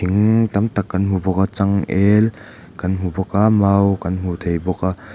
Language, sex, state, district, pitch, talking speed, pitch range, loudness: Mizo, male, Mizoram, Aizawl, 100 Hz, 200 wpm, 95-105 Hz, -18 LUFS